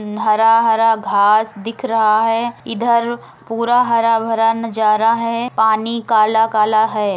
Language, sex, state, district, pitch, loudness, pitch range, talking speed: Hindi, female, Uttar Pradesh, Etah, 225 Hz, -15 LUFS, 215-230 Hz, 110 wpm